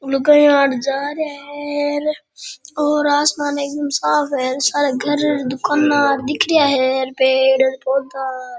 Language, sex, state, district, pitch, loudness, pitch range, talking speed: Rajasthani, male, Rajasthan, Churu, 285 Hz, -17 LUFS, 265-295 Hz, 135 wpm